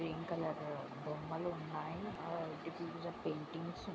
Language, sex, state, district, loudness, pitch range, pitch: Telugu, female, Andhra Pradesh, Srikakulam, -43 LUFS, 155-170 Hz, 160 Hz